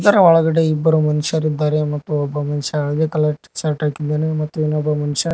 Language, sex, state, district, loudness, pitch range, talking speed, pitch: Kannada, male, Karnataka, Koppal, -18 LUFS, 150-160 Hz, 155 wpm, 150 Hz